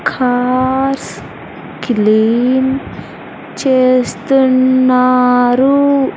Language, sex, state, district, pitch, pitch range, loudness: Telugu, female, Andhra Pradesh, Sri Satya Sai, 255 Hz, 250-265 Hz, -12 LUFS